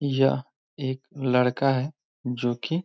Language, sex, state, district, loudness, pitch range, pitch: Hindi, male, Bihar, Muzaffarpur, -26 LUFS, 125-140 Hz, 135 Hz